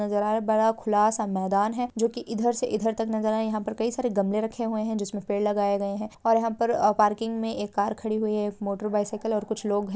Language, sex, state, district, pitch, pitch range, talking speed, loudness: Hindi, female, Bihar, Sitamarhi, 215 Hz, 205-225 Hz, 300 wpm, -26 LUFS